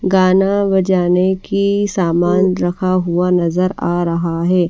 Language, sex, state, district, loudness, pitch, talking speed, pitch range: Hindi, female, Odisha, Malkangiri, -15 LUFS, 185 Hz, 130 wpm, 175-190 Hz